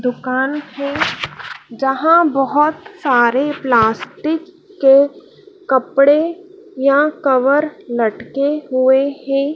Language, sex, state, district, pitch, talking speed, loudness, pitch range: Hindi, female, Madhya Pradesh, Dhar, 280 Hz, 80 wpm, -16 LUFS, 265-315 Hz